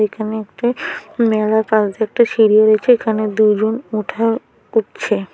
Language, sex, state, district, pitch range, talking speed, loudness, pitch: Bengali, female, West Bengal, Paschim Medinipur, 215-230 Hz, 135 wpm, -16 LUFS, 220 Hz